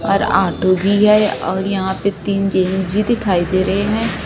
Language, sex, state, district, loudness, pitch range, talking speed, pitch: Hindi, female, Chhattisgarh, Raipur, -16 LUFS, 185-210 Hz, 185 wpm, 195 Hz